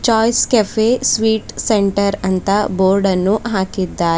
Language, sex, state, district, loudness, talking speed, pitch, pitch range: Kannada, female, Karnataka, Bidar, -16 LUFS, 115 wpm, 200 Hz, 190-220 Hz